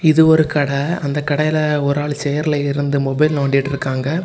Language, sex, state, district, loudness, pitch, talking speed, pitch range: Tamil, male, Tamil Nadu, Kanyakumari, -17 LUFS, 145 Hz, 170 wpm, 140-155 Hz